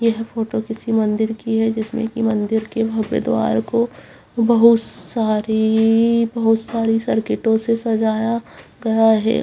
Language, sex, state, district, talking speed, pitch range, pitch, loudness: Hindi, female, Bihar, Madhepura, 140 wpm, 220-230 Hz, 225 Hz, -18 LUFS